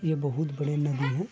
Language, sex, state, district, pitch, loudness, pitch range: Hindi, male, Bihar, Madhepura, 145 Hz, -29 LUFS, 145-155 Hz